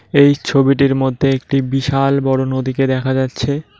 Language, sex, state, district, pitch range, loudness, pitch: Bengali, male, West Bengal, Cooch Behar, 130-140 Hz, -15 LUFS, 135 Hz